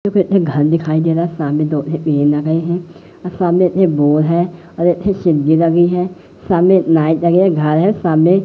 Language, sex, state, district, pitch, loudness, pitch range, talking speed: Hindi, male, Madhya Pradesh, Katni, 170 Hz, -14 LUFS, 155-180 Hz, 140 wpm